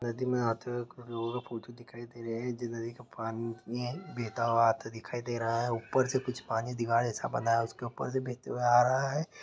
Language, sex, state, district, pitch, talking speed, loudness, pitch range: Hindi, male, Uttar Pradesh, Hamirpur, 120 Hz, 230 wpm, -32 LUFS, 115-125 Hz